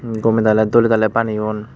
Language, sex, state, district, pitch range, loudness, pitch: Chakma, male, Tripura, West Tripura, 110-115 Hz, -16 LUFS, 110 Hz